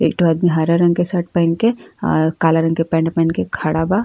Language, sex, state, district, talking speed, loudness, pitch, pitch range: Bhojpuri, female, Uttar Pradesh, Ghazipur, 265 wpm, -17 LUFS, 165 Hz, 160-175 Hz